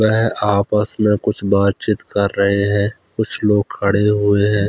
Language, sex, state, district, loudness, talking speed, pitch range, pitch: Hindi, male, Odisha, Khordha, -17 LUFS, 165 wpm, 100-105 Hz, 105 Hz